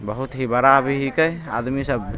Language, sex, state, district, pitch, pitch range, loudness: Maithili, male, Bihar, Begusarai, 135 Hz, 120-140 Hz, -20 LUFS